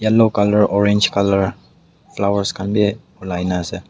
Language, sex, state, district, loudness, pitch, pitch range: Nagamese, male, Nagaland, Dimapur, -17 LUFS, 100 Hz, 95-105 Hz